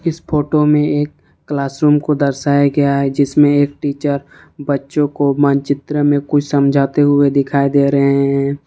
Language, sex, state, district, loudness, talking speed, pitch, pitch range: Hindi, male, Jharkhand, Ranchi, -15 LUFS, 160 wpm, 145 Hz, 140-145 Hz